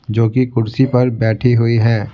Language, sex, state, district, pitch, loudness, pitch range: Hindi, male, Bihar, Patna, 115 Hz, -15 LUFS, 115-125 Hz